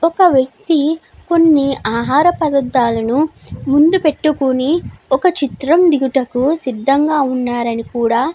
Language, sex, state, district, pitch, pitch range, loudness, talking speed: Telugu, female, Andhra Pradesh, Guntur, 280 Hz, 255-320 Hz, -15 LUFS, 100 wpm